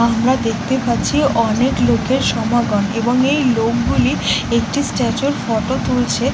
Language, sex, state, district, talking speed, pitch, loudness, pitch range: Bengali, female, West Bengal, North 24 Parganas, 125 wpm, 235 Hz, -16 LUFS, 230-260 Hz